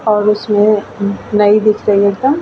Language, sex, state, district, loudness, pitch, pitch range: Hindi, female, Bihar, Vaishali, -13 LUFS, 210 Hz, 205-215 Hz